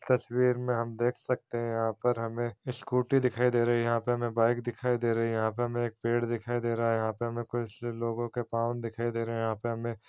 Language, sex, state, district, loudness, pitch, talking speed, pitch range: Hindi, male, Chhattisgarh, Korba, -30 LUFS, 120 Hz, 275 wpm, 115-120 Hz